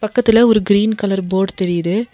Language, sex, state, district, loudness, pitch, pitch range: Tamil, female, Tamil Nadu, Nilgiris, -15 LUFS, 205 Hz, 190-225 Hz